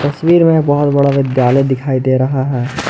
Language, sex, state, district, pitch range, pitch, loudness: Hindi, male, Jharkhand, Ranchi, 130-145 Hz, 140 Hz, -13 LUFS